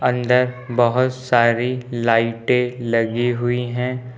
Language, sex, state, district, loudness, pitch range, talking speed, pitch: Hindi, male, Uttar Pradesh, Lucknow, -19 LUFS, 120-125 Hz, 100 wpm, 125 Hz